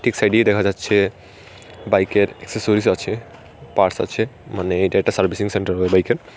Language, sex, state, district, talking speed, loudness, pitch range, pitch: Bengali, male, Tripura, Unakoti, 140 wpm, -19 LUFS, 95-110 Hz, 100 Hz